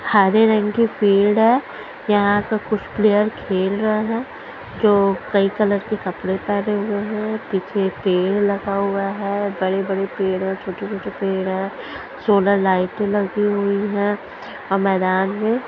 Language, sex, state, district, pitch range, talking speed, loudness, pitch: Hindi, female, Haryana, Charkhi Dadri, 195-210 Hz, 155 wpm, -19 LUFS, 200 Hz